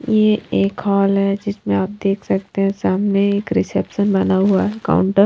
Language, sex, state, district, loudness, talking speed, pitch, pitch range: Hindi, female, Haryana, Rohtak, -18 LUFS, 195 wpm, 195 Hz, 195-205 Hz